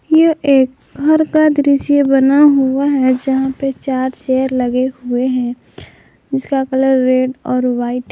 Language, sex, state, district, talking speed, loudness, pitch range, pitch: Hindi, female, Jharkhand, Palamu, 155 wpm, -14 LUFS, 255-280 Hz, 265 Hz